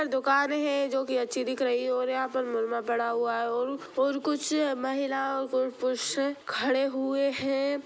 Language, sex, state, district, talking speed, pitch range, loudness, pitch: Bhojpuri, female, Bihar, Gopalganj, 160 wpm, 255-275 Hz, -28 LUFS, 265 Hz